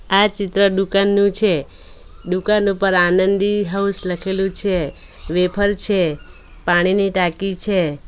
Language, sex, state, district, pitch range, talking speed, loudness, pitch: Gujarati, female, Gujarat, Valsad, 180-200 Hz, 110 wpm, -17 LUFS, 195 Hz